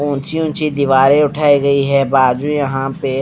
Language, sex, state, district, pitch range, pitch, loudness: Hindi, male, Punjab, Fazilka, 135-150 Hz, 140 Hz, -14 LUFS